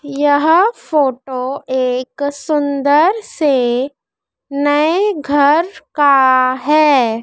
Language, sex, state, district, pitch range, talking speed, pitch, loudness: Hindi, female, Madhya Pradesh, Dhar, 260-310 Hz, 75 wpm, 285 Hz, -14 LUFS